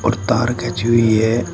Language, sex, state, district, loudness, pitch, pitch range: Hindi, male, Uttar Pradesh, Shamli, -16 LUFS, 115 Hz, 110-120 Hz